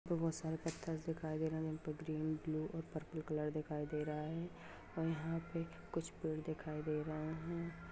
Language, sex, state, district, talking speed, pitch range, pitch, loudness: Hindi, female, Bihar, Purnia, 210 wpm, 155-165 Hz, 160 Hz, -43 LUFS